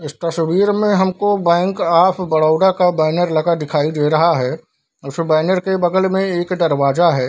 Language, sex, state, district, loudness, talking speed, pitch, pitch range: Hindi, male, Bihar, Darbhanga, -16 LUFS, 180 wpm, 170 Hz, 155-185 Hz